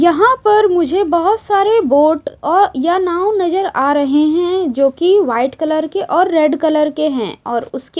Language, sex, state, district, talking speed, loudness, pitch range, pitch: Hindi, female, Odisha, Sambalpur, 185 wpm, -14 LUFS, 300-385 Hz, 340 Hz